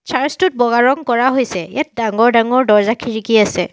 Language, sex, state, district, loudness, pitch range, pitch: Assamese, female, Assam, Sonitpur, -14 LUFS, 220-260 Hz, 240 Hz